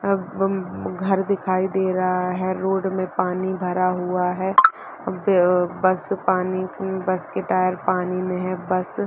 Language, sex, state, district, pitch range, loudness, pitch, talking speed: Hindi, female, Chhattisgarh, Bastar, 180-190 Hz, -22 LUFS, 185 Hz, 145 wpm